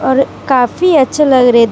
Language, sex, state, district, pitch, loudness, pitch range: Hindi, female, Jharkhand, Deoghar, 265 Hz, -11 LUFS, 250-290 Hz